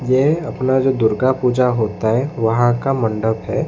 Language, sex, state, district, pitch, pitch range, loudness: Hindi, male, Odisha, Khordha, 125 Hz, 110-130 Hz, -17 LUFS